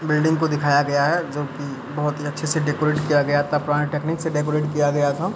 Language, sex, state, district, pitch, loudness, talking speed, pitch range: Hindi, male, Bihar, Begusarai, 150 Hz, -21 LUFS, 245 wpm, 145-155 Hz